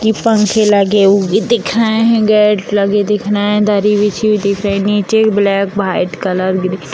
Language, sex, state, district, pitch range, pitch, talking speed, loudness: Hindi, female, Bihar, Purnia, 200-215 Hz, 205 Hz, 225 wpm, -12 LUFS